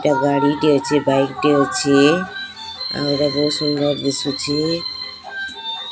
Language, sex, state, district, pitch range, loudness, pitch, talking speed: Odia, female, Odisha, Sambalpur, 140-165 Hz, -18 LUFS, 145 Hz, 110 wpm